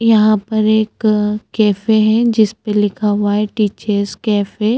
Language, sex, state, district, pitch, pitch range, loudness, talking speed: Hindi, female, Chhattisgarh, Bastar, 215 Hz, 210-220 Hz, -15 LUFS, 165 wpm